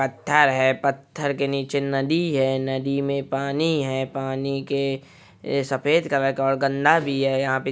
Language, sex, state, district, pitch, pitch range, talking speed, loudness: Hindi, male, Andhra Pradesh, Visakhapatnam, 140 Hz, 135-140 Hz, 165 wpm, -22 LUFS